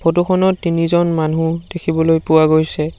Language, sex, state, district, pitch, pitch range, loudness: Assamese, male, Assam, Sonitpur, 165 Hz, 160-175 Hz, -15 LUFS